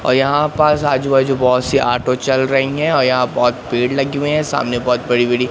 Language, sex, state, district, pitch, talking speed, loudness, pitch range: Hindi, male, Madhya Pradesh, Katni, 130 Hz, 230 wpm, -15 LUFS, 125-140 Hz